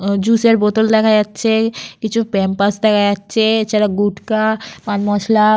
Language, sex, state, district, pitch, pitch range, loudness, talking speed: Bengali, female, Jharkhand, Sahebganj, 215 Hz, 205-220 Hz, -15 LUFS, 140 wpm